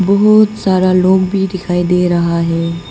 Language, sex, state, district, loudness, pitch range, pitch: Hindi, female, Arunachal Pradesh, Papum Pare, -12 LUFS, 175-195 Hz, 185 Hz